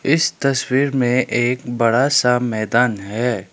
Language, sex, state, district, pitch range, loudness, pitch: Hindi, male, Sikkim, Gangtok, 115-135 Hz, -18 LUFS, 125 Hz